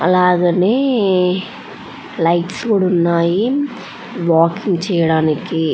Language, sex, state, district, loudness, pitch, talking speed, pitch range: Telugu, female, Andhra Pradesh, Anantapur, -16 LUFS, 180 Hz, 75 wpm, 170-220 Hz